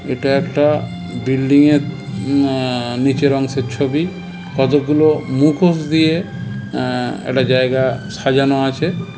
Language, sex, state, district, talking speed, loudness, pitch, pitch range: Bengali, male, West Bengal, North 24 Parganas, 105 wpm, -16 LUFS, 140 Hz, 130-150 Hz